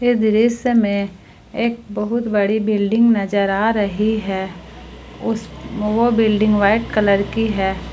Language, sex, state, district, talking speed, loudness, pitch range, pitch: Hindi, female, Jharkhand, Palamu, 130 wpm, -18 LUFS, 200-225 Hz, 215 Hz